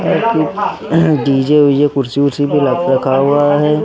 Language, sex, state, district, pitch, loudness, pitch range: Hindi, male, Bihar, Katihar, 145 Hz, -13 LUFS, 135-150 Hz